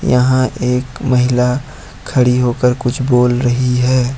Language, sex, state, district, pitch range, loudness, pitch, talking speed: Hindi, male, Jharkhand, Ranchi, 125-130 Hz, -14 LUFS, 125 Hz, 130 wpm